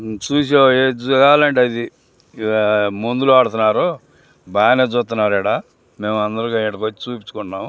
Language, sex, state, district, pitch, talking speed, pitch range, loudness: Telugu, male, Andhra Pradesh, Guntur, 115 Hz, 70 wpm, 110-130 Hz, -16 LUFS